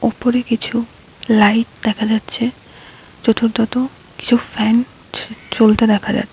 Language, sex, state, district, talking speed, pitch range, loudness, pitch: Bengali, female, West Bengal, Alipurduar, 105 wpm, 220-240 Hz, -17 LUFS, 230 Hz